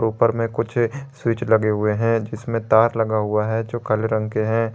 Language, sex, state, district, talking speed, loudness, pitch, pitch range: Hindi, male, Jharkhand, Garhwa, 215 wpm, -21 LUFS, 115 Hz, 110-115 Hz